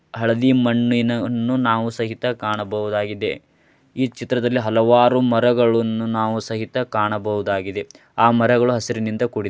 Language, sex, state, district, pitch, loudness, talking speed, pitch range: Kannada, male, Karnataka, Dharwad, 115 Hz, -19 LUFS, 100 wpm, 110-120 Hz